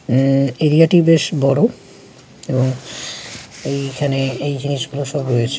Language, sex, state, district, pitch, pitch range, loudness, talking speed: Bengali, male, West Bengal, Jalpaiguri, 140 Hz, 135-145 Hz, -17 LUFS, 140 wpm